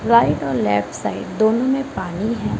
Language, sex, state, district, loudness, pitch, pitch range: Hindi, female, Maharashtra, Mumbai Suburban, -20 LUFS, 220 Hz, 150-235 Hz